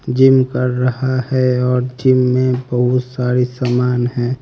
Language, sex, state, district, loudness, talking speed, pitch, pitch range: Hindi, male, Haryana, Rohtak, -16 LUFS, 150 wpm, 125 Hz, 125-130 Hz